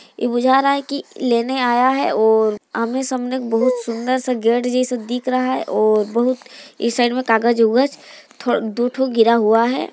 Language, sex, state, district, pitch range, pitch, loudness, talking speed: Hindi, female, Bihar, Muzaffarpur, 230-260 Hz, 245 Hz, -18 LUFS, 180 wpm